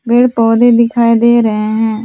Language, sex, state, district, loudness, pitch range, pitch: Hindi, female, Jharkhand, Palamu, -10 LUFS, 225-235 Hz, 230 Hz